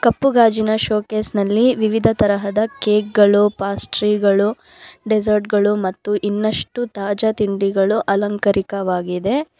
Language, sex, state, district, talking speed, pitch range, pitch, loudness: Kannada, female, Karnataka, Bangalore, 95 wpm, 200-220 Hz, 210 Hz, -17 LUFS